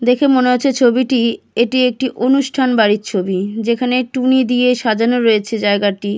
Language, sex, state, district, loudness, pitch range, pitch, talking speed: Bengali, female, West Bengal, Kolkata, -15 LUFS, 220-255 Hz, 245 Hz, 145 wpm